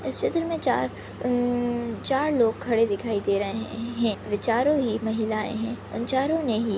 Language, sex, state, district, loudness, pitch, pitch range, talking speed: Hindi, female, Maharashtra, Nagpur, -25 LUFS, 230 Hz, 220-250 Hz, 185 wpm